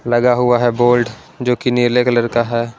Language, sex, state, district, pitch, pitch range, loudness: Hindi, male, Punjab, Pathankot, 120 Hz, 120-125 Hz, -15 LUFS